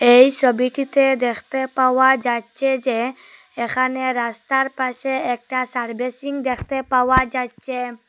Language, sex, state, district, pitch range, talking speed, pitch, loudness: Bengali, female, Assam, Hailakandi, 245-265 Hz, 105 wpm, 255 Hz, -19 LUFS